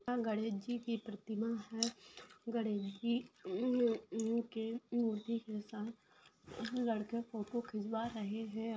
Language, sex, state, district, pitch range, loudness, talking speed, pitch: Hindi, female, Bihar, Muzaffarpur, 215-235 Hz, -40 LUFS, 90 wpm, 225 Hz